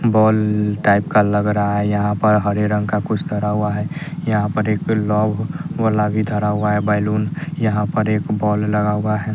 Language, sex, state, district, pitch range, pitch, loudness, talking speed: Hindi, male, Bihar, West Champaran, 105-110 Hz, 105 Hz, -18 LUFS, 200 wpm